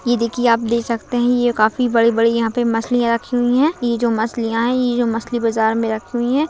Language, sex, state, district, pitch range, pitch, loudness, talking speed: Hindi, female, Maharashtra, Chandrapur, 230-245 Hz, 235 Hz, -17 LUFS, 250 wpm